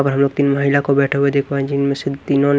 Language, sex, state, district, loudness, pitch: Hindi, male, Odisha, Nuapada, -17 LUFS, 140 Hz